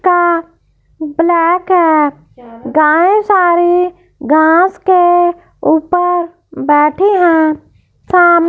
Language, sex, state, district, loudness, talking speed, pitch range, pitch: Hindi, female, Punjab, Fazilka, -11 LUFS, 80 wpm, 310-360 Hz, 345 Hz